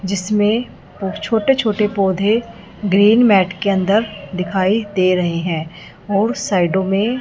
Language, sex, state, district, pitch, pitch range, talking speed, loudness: Hindi, female, Punjab, Fazilka, 200 Hz, 190-215 Hz, 135 wpm, -17 LUFS